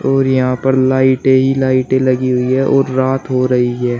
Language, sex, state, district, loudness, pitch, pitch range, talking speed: Hindi, male, Uttar Pradesh, Shamli, -13 LUFS, 130 Hz, 130-135 Hz, 210 wpm